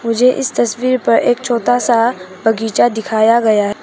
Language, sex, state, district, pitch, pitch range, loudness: Hindi, female, Arunachal Pradesh, Papum Pare, 230 Hz, 220-245 Hz, -14 LUFS